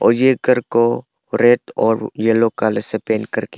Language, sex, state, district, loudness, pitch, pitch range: Hindi, male, Arunachal Pradesh, Papum Pare, -17 LUFS, 115 Hz, 115-125 Hz